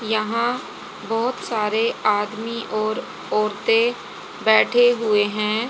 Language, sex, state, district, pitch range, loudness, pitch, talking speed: Hindi, female, Haryana, Jhajjar, 215-235 Hz, -21 LUFS, 220 Hz, 95 wpm